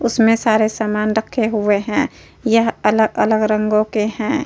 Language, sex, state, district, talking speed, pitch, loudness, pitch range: Hindi, female, Uttar Pradesh, Jyotiba Phule Nagar, 175 wpm, 220 Hz, -17 LUFS, 215-225 Hz